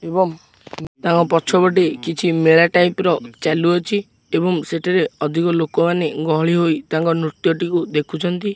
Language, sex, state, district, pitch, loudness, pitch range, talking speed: Odia, male, Odisha, Khordha, 170 Hz, -18 LUFS, 160-175 Hz, 120 wpm